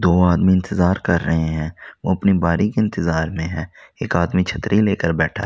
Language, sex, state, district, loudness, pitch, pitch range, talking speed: Hindi, male, Delhi, New Delhi, -19 LUFS, 90 Hz, 80-95 Hz, 195 wpm